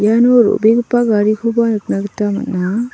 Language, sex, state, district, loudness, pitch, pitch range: Garo, female, Meghalaya, South Garo Hills, -14 LUFS, 220 Hz, 210-235 Hz